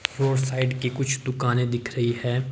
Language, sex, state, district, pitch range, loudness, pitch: Hindi, male, Himachal Pradesh, Shimla, 120-130 Hz, -25 LUFS, 130 Hz